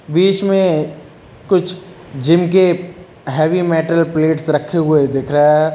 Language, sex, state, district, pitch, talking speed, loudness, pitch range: Hindi, male, Uttar Pradesh, Lucknow, 160 Hz, 135 wpm, -15 LUFS, 150-180 Hz